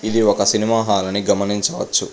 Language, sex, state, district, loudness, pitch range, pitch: Telugu, male, Telangana, Hyderabad, -18 LUFS, 100-110 Hz, 105 Hz